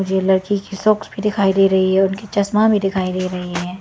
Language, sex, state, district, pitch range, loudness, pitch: Hindi, female, Arunachal Pradesh, Lower Dibang Valley, 190-205 Hz, -17 LUFS, 195 Hz